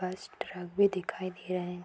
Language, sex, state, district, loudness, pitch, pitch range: Hindi, female, Uttar Pradesh, Budaun, -33 LUFS, 185 Hz, 180-195 Hz